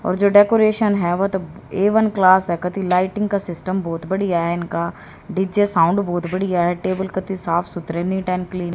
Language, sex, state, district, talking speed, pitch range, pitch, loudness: Hindi, female, Haryana, Rohtak, 200 wpm, 175-195 Hz, 185 Hz, -19 LUFS